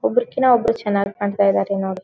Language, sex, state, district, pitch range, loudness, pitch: Kannada, female, Karnataka, Dharwad, 195-235 Hz, -19 LUFS, 205 Hz